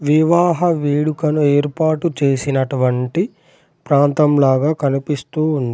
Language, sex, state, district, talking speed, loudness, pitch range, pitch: Telugu, male, Telangana, Adilabad, 75 wpm, -16 LUFS, 140-155 Hz, 150 Hz